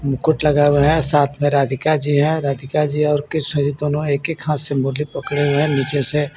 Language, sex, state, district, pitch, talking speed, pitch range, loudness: Hindi, male, Jharkhand, Garhwa, 145 Hz, 215 wpm, 140-150 Hz, -17 LUFS